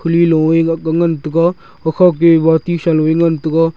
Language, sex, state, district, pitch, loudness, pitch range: Wancho, male, Arunachal Pradesh, Longding, 165 Hz, -13 LUFS, 160-170 Hz